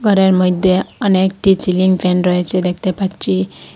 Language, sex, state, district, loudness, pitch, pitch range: Bengali, female, Assam, Hailakandi, -15 LUFS, 185 Hz, 180-190 Hz